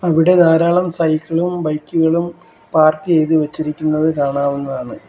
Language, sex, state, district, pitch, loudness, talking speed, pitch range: Malayalam, male, Kerala, Kollam, 160 Hz, -16 LUFS, 95 wpm, 155-170 Hz